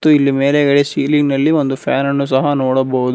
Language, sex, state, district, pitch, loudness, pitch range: Kannada, male, Karnataka, Bangalore, 140 Hz, -14 LUFS, 135-145 Hz